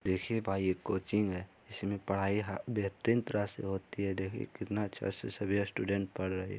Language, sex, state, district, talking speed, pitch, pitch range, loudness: Hindi, male, Bihar, Bhagalpur, 165 wpm, 100 Hz, 95-105 Hz, -35 LUFS